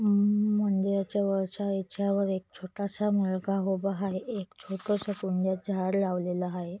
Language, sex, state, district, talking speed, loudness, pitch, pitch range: Marathi, female, Maharashtra, Solapur, 140 wpm, -29 LUFS, 195 Hz, 190-200 Hz